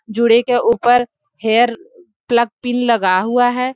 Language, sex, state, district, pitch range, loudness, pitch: Hindi, female, Jharkhand, Sahebganj, 230-245 Hz, -15 LUFS, 240 Hz